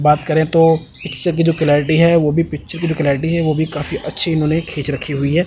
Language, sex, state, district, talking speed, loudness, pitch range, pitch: Hindi, male, Chandigarh, Chandigarh, 265 wpm, -16 LUFS, 150-165 Hz, 160 Hz